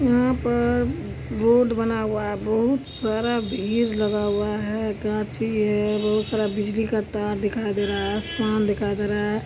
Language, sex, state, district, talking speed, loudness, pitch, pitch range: Maithili, female, Bihar, Supaul, 185 wpm, -23 LUFS, 215 Hz, 210-225 Hz